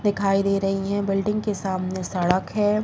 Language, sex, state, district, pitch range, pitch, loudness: Hindi, female, Uttar Pradesh, Muzaffarnagar, 190-205 Hz, 195 Hz, -23 LUFS